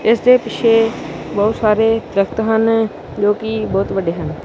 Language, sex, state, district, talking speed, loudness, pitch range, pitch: Punjabi, male, Punjab, Kapurthala, 160 wpm, -16 LUFS, 205-225 Hz, 220 Hz